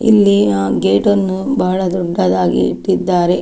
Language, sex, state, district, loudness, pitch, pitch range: Kannada, female, Karnataka, Dakshina Kannada, -14 LUFS, 185 Hz, 175-200 Hz